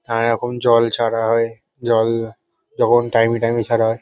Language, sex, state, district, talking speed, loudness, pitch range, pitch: Bengali, male, West Bengal, North 24 Parganas, 240 wpm, -17 LUFS, 115-120 Hz, 115 Hz